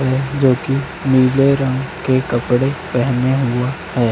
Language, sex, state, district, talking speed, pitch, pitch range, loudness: Hindi, male, Chhattisgarh, Raipur, 130 wpm, 130 Hz, 125-135 Hz, -17 LUFS